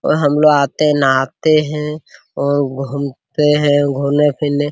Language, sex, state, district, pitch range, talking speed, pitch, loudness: Hindi, male, Bihar, Araria, 140-150 Hz, 150 wpm, 145 Hz, -15 LUFS